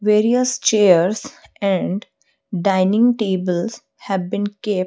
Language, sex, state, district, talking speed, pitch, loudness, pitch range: English, female, Odisha, Malkangiri, 100 wpm, 205 Hz, -18 LUFS, 190-225 Hz